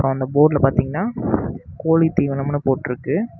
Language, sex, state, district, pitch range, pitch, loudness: Tamil, male, Tamil Nadu, Namakkal, 135-165 Hz, 145 Hz, -19 LUFS